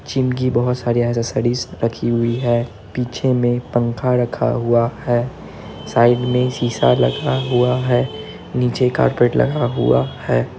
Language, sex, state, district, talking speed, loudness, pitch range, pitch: Hindi, male, Bihar, Araria, 140 wpm, -18 LUFS, 115-125 Hz, 120 Hz